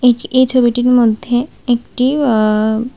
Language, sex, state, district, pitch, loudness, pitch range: Bengali, female, Tripura, West Tripura, 245 Hz, -14 LUFS, 230-255 Hz